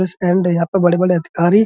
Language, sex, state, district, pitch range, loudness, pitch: Hindi, male, Uttar Pradesh, Budaun, 175-185 Hz, -15 LUFS, 180 Hz